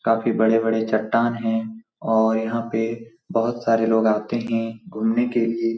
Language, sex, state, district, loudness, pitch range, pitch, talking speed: Hindi, male, Bihar, Supaul, -22 LUFS, 110-115 Hz, 115 Hz, 155 wpm